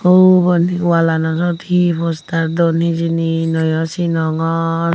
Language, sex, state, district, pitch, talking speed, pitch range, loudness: Chakma, female, Tripura, Unakoti, 165 Hz, 95 wpm, 165-175 Hz, -15 LUFS